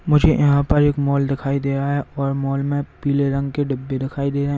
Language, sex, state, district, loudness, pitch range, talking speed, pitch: Hindi, male, Uttar Pradesh, Lalitpur, -20 LUFS, 140-145 Hz, 260 wpm, 140 Hz